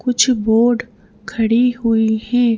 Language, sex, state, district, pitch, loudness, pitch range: Hindi, female, Madhya Pradesh, Bhopal, 230 Hz, -16 LUFS, 220-245 Hz